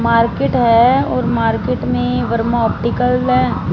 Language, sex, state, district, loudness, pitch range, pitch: Hindi, female, Punjab, Fazilka, -15 LUFS, 230-250 Hz, 235 Hz